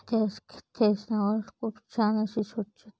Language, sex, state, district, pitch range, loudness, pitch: Marathi, female, Maharashtra, Chandrapur, 210-220 Hz, -29 LUFS, 215 Hz